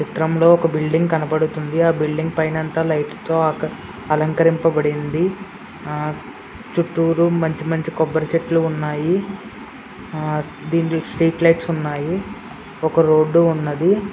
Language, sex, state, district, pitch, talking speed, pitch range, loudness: Telugu, male, Andhra Pradesh, Srikakulam, 160 Hz, 125 wpm, 155-165 Hz, -19 LUFS